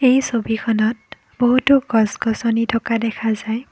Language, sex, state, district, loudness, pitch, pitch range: Assamese, female, Assam, Kamrup Metropolitan, -18 LUFS, 230 Hz, 225-245 Hz